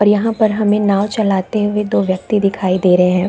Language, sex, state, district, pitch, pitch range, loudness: Hindi, female, Chhattisgarh, Bilaspur, 205 Hz, 190-210 Hz, -15 LUFS